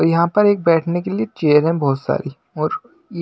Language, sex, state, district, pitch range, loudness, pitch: Hindi, male, Bihar, Katihar, 155-200 Hz, -17 LUFS, 170 Hz